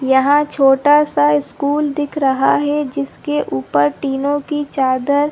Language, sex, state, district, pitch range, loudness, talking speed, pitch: Hindi, female, Chhattisgarh, Balrampur, 265-295 Hz, -16 LUFS, 145 wpm, 285 Hz